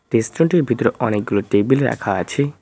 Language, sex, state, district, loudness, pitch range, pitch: Bengali, male, West Bengal, Cooch Behar, -18 LUFS, 105-140 Hz, 120 Hz